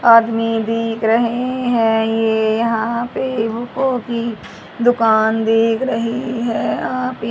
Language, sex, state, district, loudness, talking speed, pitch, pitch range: Hindi, female, Haryana, Rohtak, -17 LUFS, 115 wpm, 230 Hz, 225-240 Hz